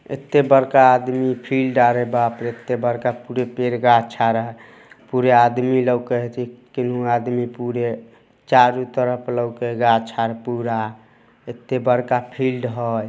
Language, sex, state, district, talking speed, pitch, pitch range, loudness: Hindi, male, Bihar, Samastipur, 145 wpm, 120 Hz, 120-125 Hz, -19 LUFS